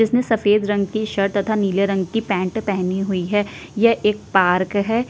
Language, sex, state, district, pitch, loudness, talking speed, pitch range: Hindi, female, Uttar Pradesh, Jyotiba Phule Nagar, 205 Hz, -19 LUFS, 200 wpm, 195-220 Hz